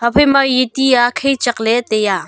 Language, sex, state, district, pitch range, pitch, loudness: Wancho, female, Arunachal Pradesh, Longding, 225-270 Hz, 245 Hz, -14 LUFS